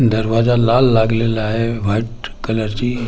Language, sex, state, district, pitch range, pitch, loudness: Marathi, male, Maharashtra, Gondia, 110-120 Hz, 115 Hz, -16 LUFS